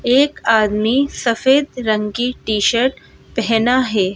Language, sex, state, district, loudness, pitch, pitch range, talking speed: Hindi, female, Madhya Pradesh, Bhopal, -16 LUFS, 235 Hz, 215-255 Hz, 115 wpm